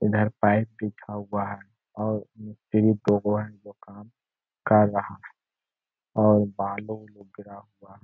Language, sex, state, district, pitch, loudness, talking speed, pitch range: Hindi, male, Bihar, Araria, 105 Hz, -25 LUFS, 155 wpm, 100-105 Hz